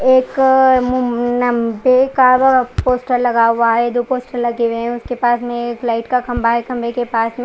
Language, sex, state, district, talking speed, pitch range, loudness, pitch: Hindi, female, Odisha, Khordha, 175 wpm, 235-255 Hz, -15 LUFS, 245 Hz